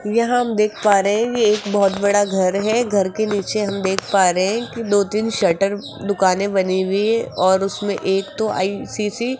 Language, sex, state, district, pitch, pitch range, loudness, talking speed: Hindi, female, Rajasthan, Jaipur, 205 Hz, 195-215 Hz, -18 LUFS, 210 wpm